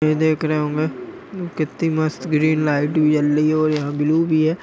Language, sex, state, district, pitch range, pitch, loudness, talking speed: Hindi, male, Chhattisgarh, Korba, 150-160 Hz, 155 Hz, -19 LUFS, 220 wpm